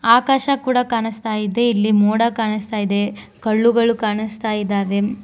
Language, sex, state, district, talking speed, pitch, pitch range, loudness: Kannada, female, Karnataka, Koppal, 125 wpm, 220 Hz, 210-235 Hz, -18 LUFS